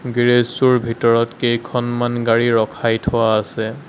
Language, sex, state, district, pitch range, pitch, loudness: Assamese, male, Assam, Sonitpur, 115-120 Hz, 120 Hz, -17 LUFS